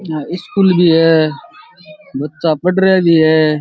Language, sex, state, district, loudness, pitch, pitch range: Rajasthani, male, Rajasthan, Churu, -13 LUFS, 170 Hz, 155-185 Hz